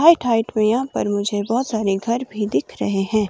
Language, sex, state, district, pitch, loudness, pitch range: Hindi, female, Himachal Pradesh, Shimla, 220 Hz, -20 LUFS, 205-240 Hz